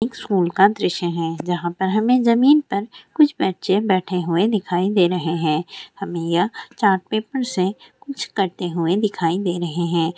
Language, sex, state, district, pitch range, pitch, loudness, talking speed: Hindi, female, Bihar, Sitamarhi, 175-215 Hz, 190 Hz, -20 LUFS, 185 wpm